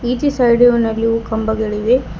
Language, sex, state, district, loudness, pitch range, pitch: Kannada, female, Karnataka, Bidar, -15 LUFS, 220-245 Hz, 230 Hz